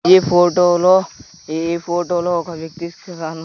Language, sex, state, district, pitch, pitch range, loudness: Telugu, male, Andhra Pradesh, Sri Satya Sai, 170 Hz, 165-175 Hz, -16 LUFS